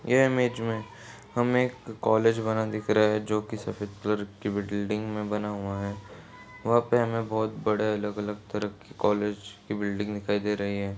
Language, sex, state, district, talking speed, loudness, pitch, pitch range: Hindi, male, Uttarakhand, Uttarkashi, 190 wpm, -28 LUFS, 105 Hz, 100-110 Hz